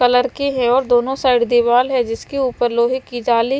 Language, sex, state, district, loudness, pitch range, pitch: Hindi, male, Punjab, Fazilka, -17 LUFS, 240-260 Hz, 245 Hz